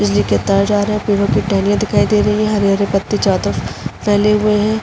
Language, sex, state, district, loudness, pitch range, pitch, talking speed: Hindi, female, Uttar Pradesh, Jalaun, -15 LUFS, 195-210 Hz, 205 Hz, 250 wpm